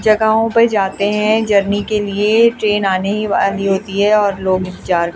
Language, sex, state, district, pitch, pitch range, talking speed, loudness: Hindi, female, Delhi, New Delhi, 205 Hz, 195-215 Hz, 195 wpm, -15 LUFS